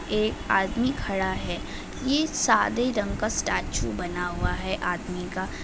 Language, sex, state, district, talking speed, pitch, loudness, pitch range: Hindi, female, Uttar Pradesh, Budaun, 150 wpm, 195 Hz, -26 LUFS, 180-245 Hz